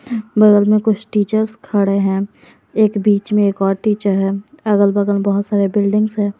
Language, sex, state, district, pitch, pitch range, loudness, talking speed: Hindi, female, Jharkhand, Garhwa, 205 Hz, 200-215 Hz, -16 LUFS, 180 wpm